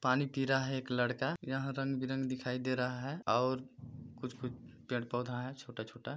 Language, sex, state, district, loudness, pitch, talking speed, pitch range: Hindi, male, Chhattisgarh, Balrampur, -37 LUFS, 130 Hz, 165 wpm, 125-135 Hz